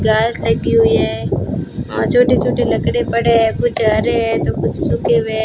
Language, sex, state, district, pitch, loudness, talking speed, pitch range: Hindi, female, Rajasthan, Bikaner, 225 Hz, -16 LUFS, 185 wpm, 220-240 Hz